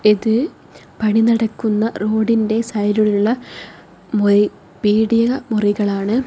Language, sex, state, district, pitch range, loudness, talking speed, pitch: Malayalam, female, Kerala, Kozhikode, 210-225 Hz, -17 LUFS, 75 wpm, 215 Hz